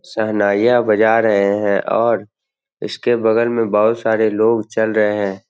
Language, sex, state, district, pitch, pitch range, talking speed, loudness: Hindi, male, Bihar, Jamui, 110 Hz, 105-115 Hz, 155 wpm, -16 LUFS